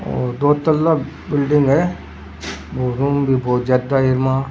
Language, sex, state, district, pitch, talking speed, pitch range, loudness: Rajasthani, male, Rajasthan, Churu, 135 Hz, 160 wpm, 125-145 Hz, -17 LUFS